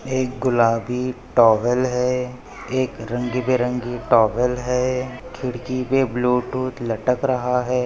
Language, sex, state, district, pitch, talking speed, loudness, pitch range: Hindi, male, Maharashtra, Chandrapur, 125 Hz, 105 wpm, -21 LUFS, 125-130 Hz